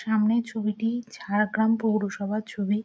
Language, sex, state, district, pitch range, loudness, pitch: Bengali, female, West Bengal, Jhargram, 210-225 Hz, -26 LUFS, 215 Hz